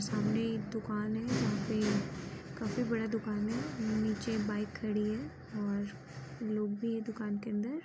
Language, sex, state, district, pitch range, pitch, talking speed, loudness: Hindi, female, Chhattisgarh, Raigarh, 210-225 Hz, 215 Hz, 160 wpm, -36 LUFS